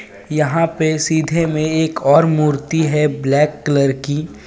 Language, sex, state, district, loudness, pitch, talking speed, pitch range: Hindi, male, Jharkhand, Ranchi, -16 LUFS, 155 Hz, 145 wpm, 150-160 Hz